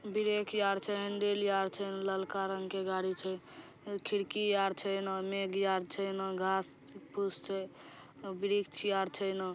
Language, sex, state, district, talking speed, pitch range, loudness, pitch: Maithili, female, Bihar, Saharsa, 170 wpm, 190-200 Hz, -35 LUFS, 195 Hz